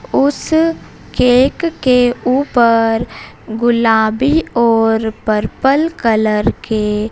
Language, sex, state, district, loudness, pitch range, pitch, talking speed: Hindi, female, Madhya Pradesh, Dhar, -14 LUFS, 220-275 Hz, 235 Hz, 75 wpm